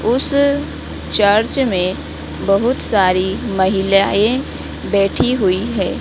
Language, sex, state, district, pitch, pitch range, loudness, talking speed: Hindi, female, Madhya Pradesh, Dhar, 200 Hz, 190-245 Hz, -16 LUFS, 90 wpm